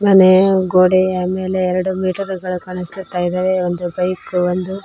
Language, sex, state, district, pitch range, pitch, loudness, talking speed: Kannada, female, Karnataka, Koppal, 180-190 Hz, 185 Hz, -16 LUFS, 150 wpm